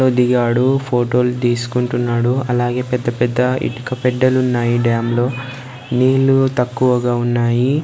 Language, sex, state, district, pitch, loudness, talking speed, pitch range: Telugu, male, Andhra Pradesh, Sri Satya Sai, 125 Hz, -16 LUFS, 100 wpm, 120-130 Hz